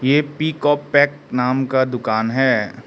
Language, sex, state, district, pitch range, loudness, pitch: Hindi, male, Arunachal Pradesh, Lower Dibang Valley, 125-145 Hz, -18 LUFS, 135 Hz